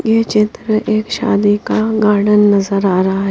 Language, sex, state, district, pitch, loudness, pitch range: Hindi, female, Bihar, Katihar, 210 Hz, -14 LUFS, 200-220 Hz